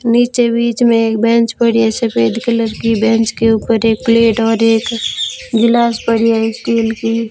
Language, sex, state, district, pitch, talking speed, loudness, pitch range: Hindi, female, Rajasthan, Bikaner, 230 Hz, 180 wpm, -13 LUFS, 225-235 Hz